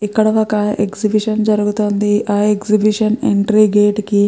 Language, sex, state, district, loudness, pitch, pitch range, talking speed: Telugu, female, Andhra Pradesh, Krishna, -15 LUFS, 210 Hz, 205-215 Hz, 140 wpm